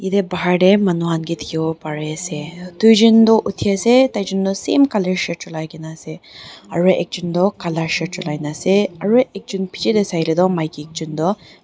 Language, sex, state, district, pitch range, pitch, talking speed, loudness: Nagamese, female, Nagaland, Dimapur, 160-200 Hz, 180 Hz, 180 wpm, -17 LUFS